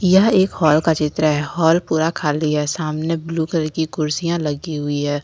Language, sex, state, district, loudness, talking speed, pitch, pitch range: Hindi, female, Jharkhand, Ranchi, -19 LUFS, 205 wpm, 155 Hz, 150-165 Hz